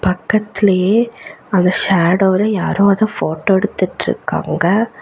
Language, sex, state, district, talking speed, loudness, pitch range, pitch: Tamil, female, Tamil Nadu, Kanyakumari, 85 wpm, -15 LUFS, 185-210 Hz, 195 Hz